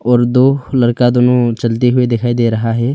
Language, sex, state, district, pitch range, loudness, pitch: Hindi, male, Arunachal Pradesh, Longding, 120-125 Hz, -13 LUFS, 120 Hz